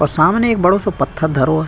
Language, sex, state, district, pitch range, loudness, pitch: Hindi, male, Uttar Pradesh, Budaun, 155-200 Hz, -15 LUFS, 160 Hz